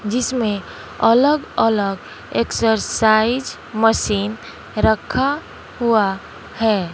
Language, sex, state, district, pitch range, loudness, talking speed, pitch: Hindi, female, Bihar, West Champaran, 205-240 Hz, -18 LUFS, 70 wpm, 220 Hz